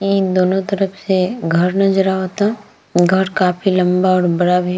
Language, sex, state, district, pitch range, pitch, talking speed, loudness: Bhojpuri, female, Bihar, East Champaran, 180-195 Hz, 185 Hz, 175 wpm, -16 LUFS